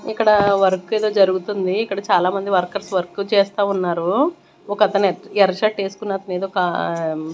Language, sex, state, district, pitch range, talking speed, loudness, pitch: Telugu, female, Andhra Pradesh, Manyam, 185-205 Hz, 130 wpm, -19 LUFS, 195 Hz